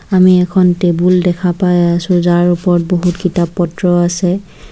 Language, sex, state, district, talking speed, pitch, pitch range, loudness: Assamese, female, Assam, Kamrup Metropolitan, 140 wpm, 180 Hz, 175-180 Hz, -12 LUFS